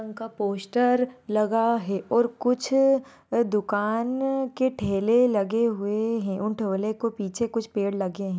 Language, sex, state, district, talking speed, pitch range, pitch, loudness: Hindi, female, Maharashtra, Nagpur, 145 wpm, 205-245 Hz, 225 Hz, -25 LUFS